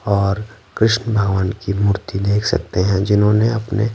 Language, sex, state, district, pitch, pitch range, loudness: Hindi, male, Bihar, Patna, 105 Hz, 100-110 Hz, -18 LUFS